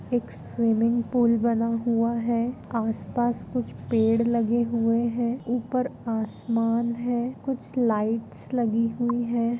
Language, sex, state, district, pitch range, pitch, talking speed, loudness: Hindi, female, Goa, North and South Goa, 230-240 Hz, 235 Hz, 125 wpm, -25 LUFS